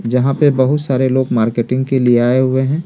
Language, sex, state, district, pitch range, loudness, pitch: Hindi, male, Delhi, New Delhi, 125-135 Hz, -14 LUFS, 130 Hz